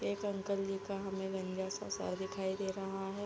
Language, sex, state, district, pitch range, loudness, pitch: Hindi, female, Chhattisgarh, Bilaspur, 190-195 Hz, -39 LUFS, 195 Hz